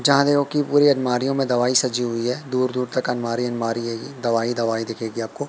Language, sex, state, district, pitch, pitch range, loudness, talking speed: Hindi, male, Madhya Pradesh, Katni, 125 Hz, 115-135 Hz, -21 LUFS, 210 wpm